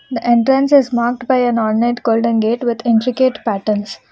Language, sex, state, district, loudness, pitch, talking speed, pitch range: English, female, Karnataka, Bangalore, -15 LUFS, 235 Hz, 160 wpm, 225-255 Hz